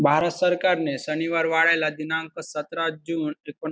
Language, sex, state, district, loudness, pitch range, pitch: Marathi, male, Maharashtra, Pune, -24 LUFS, 155-165 Hz, 160 Hz